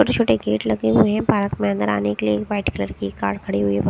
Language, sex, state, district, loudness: Hindi, female, Haryana, Rohtak, -20 LUFS